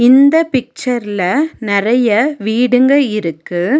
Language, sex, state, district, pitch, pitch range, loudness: Tamil, female, Tamil Nadu, Nilgiris, 250 Hz, 215-280 Hz, -13 LUFS